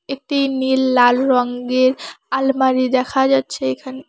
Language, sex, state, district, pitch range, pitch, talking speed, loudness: Bengali, female, West Bengal, Alipurduar, 255-265 Hz, 260 Hz, 130 wpm, -17 LUFS